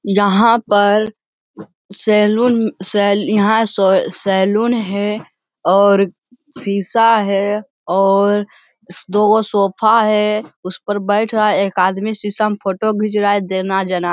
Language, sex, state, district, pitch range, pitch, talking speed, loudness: Hindi, male, Bihar, Jamui, 195-215 Hz, 205 Hz, 130 wpm, -15 LUFS